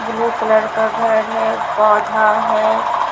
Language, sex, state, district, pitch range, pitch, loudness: Hindi, female, Bihar, Katihar, 215-225 Hz, 220 Hz, -15 LUFS